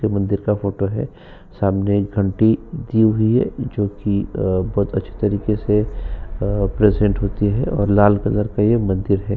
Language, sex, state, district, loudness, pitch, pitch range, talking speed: Hindi, male, Uttar Pradesh, Jyotiba Phule Nagar, -19 LUFS, 100 Hz, 100-105 Hz, 180 wpm